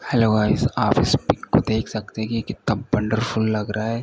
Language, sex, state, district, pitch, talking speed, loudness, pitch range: Hindi, male, Uttar Pradesh, Ghazipur, 110 Hz, 240 wpm, -21 LUFS, 105-110 Hz